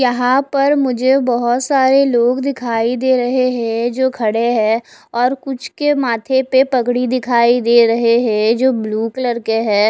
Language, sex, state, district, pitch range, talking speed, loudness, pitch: Hindi, female, Odisha, Khordha, 235-260 Hz, 170 wpm, -15 LUFS, 245 Hz